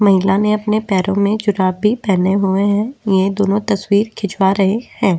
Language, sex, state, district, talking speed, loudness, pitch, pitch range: Hindi, female, Uttarakhand, Tehri Garhwal, 175 wpm, -16 LUFS, 200 Hz, 195-210 Hz